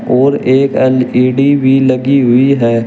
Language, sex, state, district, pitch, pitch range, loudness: Hindi, male, Uttar Pradesh, Shamli, 130 Hz, 125-135 Hz, -10 LUFS